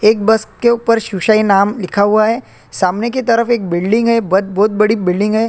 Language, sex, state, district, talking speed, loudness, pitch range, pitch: Hindi, male, Chhattisgarh, Korba, 195 wpm, -14 LUFS, 200-230 Hz, 215 Hz